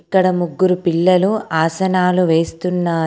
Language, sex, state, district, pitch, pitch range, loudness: Telugu, female, Telangana, Komaram Bheem, 180 Hz, 170-185 Hz, -16 LUFS